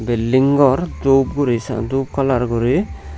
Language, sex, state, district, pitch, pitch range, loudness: Chakma, male, Tripura, Unakoti, 130 Hz, 115-135 Hz, -17 LUFS